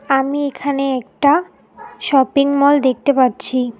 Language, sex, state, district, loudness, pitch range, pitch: Bengali, female, West Bengal, Alipurduar, -16 LUFS, 260-285 Hz, 275 Hz